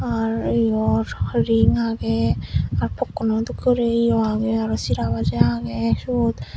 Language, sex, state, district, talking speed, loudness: Chakma, female, Tripura, Dhalai, 135 wpm, -21 LUFS